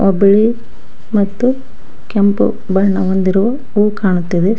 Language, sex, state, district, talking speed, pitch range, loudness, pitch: Kannada, female, Karnataka, Koppal, 90 wpm, 190-220 Hz, -14 LUFS, 200 Hz